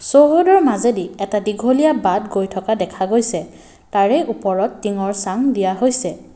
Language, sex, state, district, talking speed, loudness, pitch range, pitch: Assamese, male, Assam, Kamrup Metropolitan, 140 wpm, -17 LUFS, 190-255 Hz, 210 Hz